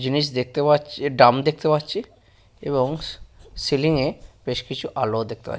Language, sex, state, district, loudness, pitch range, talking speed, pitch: Bengali, male, West Bengal, Purulia, -22 LUFS, 115-150 Hz, 150 wpm, 135 Hz